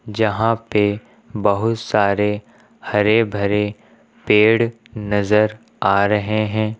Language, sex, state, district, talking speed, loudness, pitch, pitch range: Hindi, male, Uttar Pradesh, Lucknow, 95 wpm, -18 LUFS, 105 Hz, 105-110 Hz